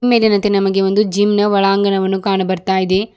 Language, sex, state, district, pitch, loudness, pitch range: Kannada, female, Karnataka, Bidar, 195 Hz, -15 LUFS, 195-205 Hz